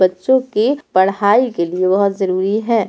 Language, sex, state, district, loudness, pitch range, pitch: Hindi, female, Uttar Pradesh, Etah, -15 LUFS, 185-230 Hz, 200 Hz